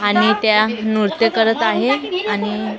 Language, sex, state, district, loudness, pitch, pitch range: Marathi, female, Maharashtra, Mumbai Suburban, -17 LUFS, 215 Hz, 210-225 Hz